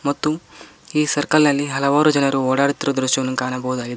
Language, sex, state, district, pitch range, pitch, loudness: Kannada, male, Karnataka, Koppal, 130-150 Hz, 140 Hz, -19 LUFS